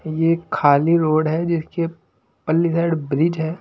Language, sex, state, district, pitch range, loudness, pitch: Hindi, male, Punjab, Pathankot, 155-170 Hz, -19 LUFS, 165 Hz